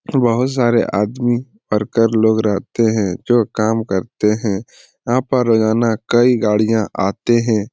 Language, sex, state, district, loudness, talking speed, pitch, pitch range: Hindi, male, Bihar, Lakhisarai, -16 LUFS, 145 wpm, 115 Hz, 105-120 Hz